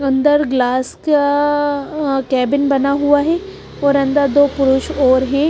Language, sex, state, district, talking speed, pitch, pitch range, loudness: Hindi, female, Punjab, Pathankot, 140 wpm, 280 Hz, 270-290 Hz, -15 LUFS